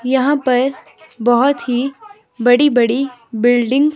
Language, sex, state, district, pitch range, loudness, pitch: Hindi, female, Himachal Pradesh, Shimla, 245-280 Hz, -15 LUFS, 255 Hz